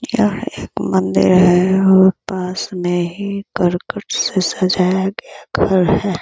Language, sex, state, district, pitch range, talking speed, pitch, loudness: Hindi, female, Uttar Pradesh, Ghazipur, 180-195 Hz, 135 wpm, 185 Hz, -16 LUFS